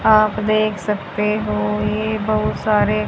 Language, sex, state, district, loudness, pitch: Hindi, female, Haryana, Jhajjar, -19 LUFS, 210 Hz